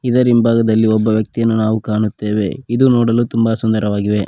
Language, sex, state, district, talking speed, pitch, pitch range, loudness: Kannada, male, Karnataka, Koppal, 125 wpm, 110 Hz, 110-115 Hz, -15 LUFS